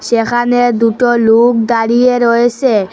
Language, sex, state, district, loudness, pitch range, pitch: Bengali, female, Assam, Hailakandi, -11 LUFS, 230-245 Hz, 235 Hz